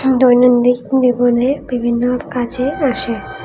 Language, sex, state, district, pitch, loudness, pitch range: Bengali, female, Tripura, West Tripura, 250 Hz, -15 LUFS, 245-260 Hz